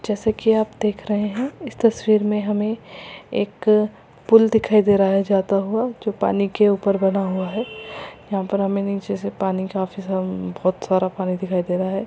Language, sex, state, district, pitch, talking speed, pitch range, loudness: Hindi, female, Uttar Pradesh, Muzaffarnagar, 200 Hz, 195 wpm, 190-215 Hz, -21 LUFS